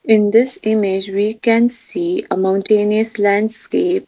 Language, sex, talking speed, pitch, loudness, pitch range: English, female, 145 wpm, 220 Hz, -16 LUFS, 205-235 Hz